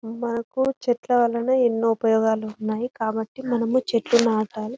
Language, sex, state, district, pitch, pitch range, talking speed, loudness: Telugu, female, Telangana, Karimnagar, 230 Hz, 220-245 Hz, 125 wpm, -23 LUFS